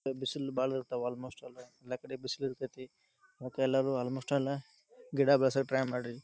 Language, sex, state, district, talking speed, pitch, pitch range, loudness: Kannada, male, Karnataka, Dharwad, 175 wpm, 130 Hz, 125-135 Hz, -34 LUFS